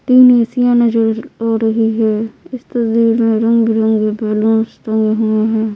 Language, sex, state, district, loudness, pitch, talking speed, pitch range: Hindi, female, Bihar, Patna, -14 LUFS, 225 Hz, 165 wpm, 220-230 Hz